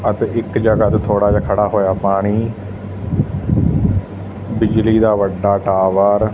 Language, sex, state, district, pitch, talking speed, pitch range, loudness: Punjabi, male, Punjab, Fazilka, 100 Hz, 130 wpm, 100-110 Hz, -16 LUFS